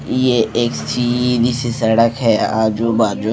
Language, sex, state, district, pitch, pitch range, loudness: Hindi, male, Odisha, Malkangiri, 115 Hz, 110-120 Hz, -16 LUFS